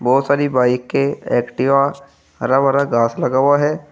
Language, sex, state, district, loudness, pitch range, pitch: Hindi, male, Uttar Pradesh, Saharanpur, -16 LUFS, 125-145 Hz, 140 Hz